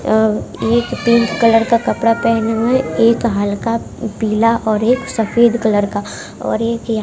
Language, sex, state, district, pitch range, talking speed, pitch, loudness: Hindi, female, Bihar, West Champaran, 220-235 Hz, 155 wpm, 230 Hz, -15 LUFS